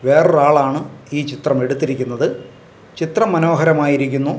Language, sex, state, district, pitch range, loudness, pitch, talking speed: Malayalam, male, Kerala, Kasaragod, 135-160 Hz, -16 LUFS, 145 Hz, 80 wpm